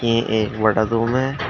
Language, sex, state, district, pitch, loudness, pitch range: Hindi, male, Uttar Pradesh, Shamli, 115 Hz, -19 LUFS, 110-125 Hz